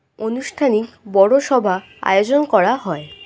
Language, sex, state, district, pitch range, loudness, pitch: Bengali, female, West Bengal, Kolkata, 190-260 Hz, -17 LUFS, 220 Hz